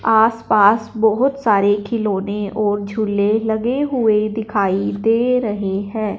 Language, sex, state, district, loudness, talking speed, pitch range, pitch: Hindi, male, Punjab, Fazilka, -17 LUFS, 125 wpm, 205-225 Hz, 215 Hz